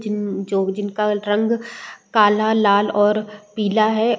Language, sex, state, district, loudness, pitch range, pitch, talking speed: Hindi, female, Uttar Pradesh, Deoria, -19 LUFS, 205-215 Hz, 210 Hz, 130 wpm